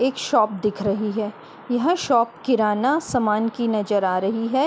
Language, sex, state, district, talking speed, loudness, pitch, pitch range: Hindi, female, Uttar Pradesh, Muzaffarnagar, 180 wpm, -22 LUFS, 225 Hz, 210-250 Hz